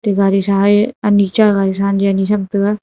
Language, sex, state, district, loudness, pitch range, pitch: Wancho, female, Arunachal Pradesh, Longding, -14 LUFS, 195-210 Hz, 200 Hz